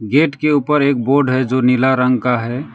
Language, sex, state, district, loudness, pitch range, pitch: Hindi, male, West Bengal, Alipurduar, -15 LUFS, 125-145 Hz, 130 Hz